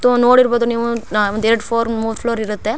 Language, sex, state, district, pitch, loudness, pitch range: Kannada, female, Karnataka, Chamarajanagar, 230 Hz, -16 LUFS, 220-240 Hz